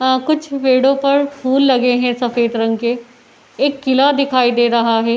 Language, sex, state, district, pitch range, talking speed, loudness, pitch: Hindi, female, Uttar Pradesh, Etah, 240-275 Hz, 185 wpm, -15 LUFS, 255 Hz